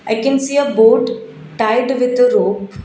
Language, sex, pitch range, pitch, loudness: English, female, 220-260 Hz, 240 Hz, -14 LUFS